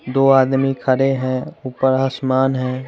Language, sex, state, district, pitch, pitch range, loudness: Hindi, male, Chandigarh, Chandigarh, 130 Hz, 130-135 Hz, -17 LUFS